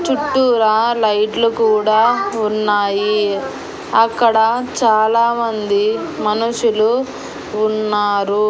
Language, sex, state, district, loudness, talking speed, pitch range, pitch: Telugu, female, Andhra Pradesh, Annamaya, -16 LUFS, 55 wpm, 210-230 Hz, 220 Hz